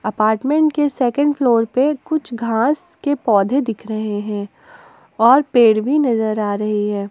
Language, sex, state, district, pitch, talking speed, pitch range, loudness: Hindi, female, Jharkhand, Ranchi, 240 Hz, 160 wpm, 215-290 Hz, -17 LUFS